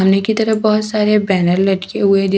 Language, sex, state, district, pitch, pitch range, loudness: Hindi, female, Haryana, Charkhi Dadri, 200 Hz, 195-215 Hz, -15 LUFS